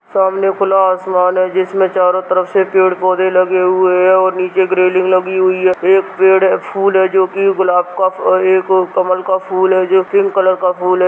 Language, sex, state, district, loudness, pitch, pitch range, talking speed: Hindi, male, Bihar, Purnia, -12 LUFS, 185 Hz, 185-190 Hz, 205 wpm